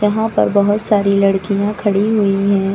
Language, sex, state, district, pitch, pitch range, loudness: Hindi, female, Uttar Pradesh, Lucknow, 200 Hz, 200-210 Hz, -15 LUFS